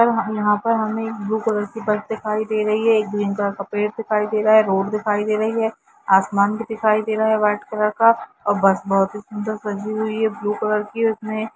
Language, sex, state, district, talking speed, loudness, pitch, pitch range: Hindi, female, Jharkhand, Sahebganj, 250 wpm, -20 LUFS, 215 Hz, 210-220 Hz